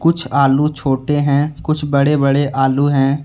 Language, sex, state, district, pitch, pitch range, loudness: Hindi, male, Jharkhand, Deoghar, 140 Hz, 135-150 Hz, -15 LUFS